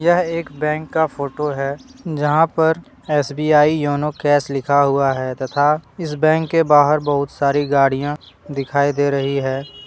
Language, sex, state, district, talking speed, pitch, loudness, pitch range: Hindi, male, Jharkhand, Deoghar, 170 wpm, 145 Hz, -18 LUFS, 140-155 Hz